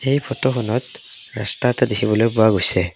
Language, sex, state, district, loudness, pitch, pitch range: Assamese, male, Assam, Kamrup Metropolitan, -18 LUFS, 115 Hz, 105-125 Hz